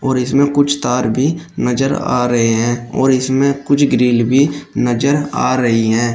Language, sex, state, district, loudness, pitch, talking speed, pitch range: Hindi, male, Uttar Pradesh, Shamli, -15 LUFS, 130 Hz, 165 wpm, 120-140 Hz